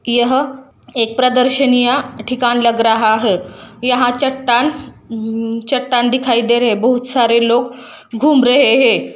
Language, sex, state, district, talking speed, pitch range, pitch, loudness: Hindi, female, Jharkhand, Jamtara, 130 wpm, 235-255 Hz, 245 Hz, -14 LUFS